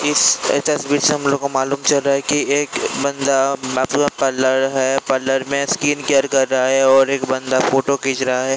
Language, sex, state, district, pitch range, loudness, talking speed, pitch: Hindi, male, Bihar, Kishanganj, 135-140 Hz, -17 LUFS, 210 wpm, 135 Hz